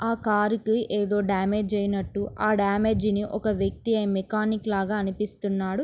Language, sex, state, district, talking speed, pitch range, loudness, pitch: Telugu, female, Andhra Pradesh, Srikakulam, 145 wpm, 200-215 Hz, -26 LUFS, 210 Hz